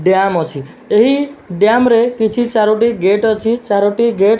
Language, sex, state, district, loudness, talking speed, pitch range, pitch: Odia, male, Odisha, Malkangiri, -13 LUFS, 150 wpm, 195-235 Hz, 220 Hz